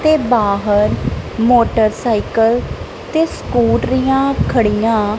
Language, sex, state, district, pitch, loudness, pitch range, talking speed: Punjabi, female, Punjab, Kapurthala, 230 Hz, -15 LUFS, 215-255 Hz, 80 wpm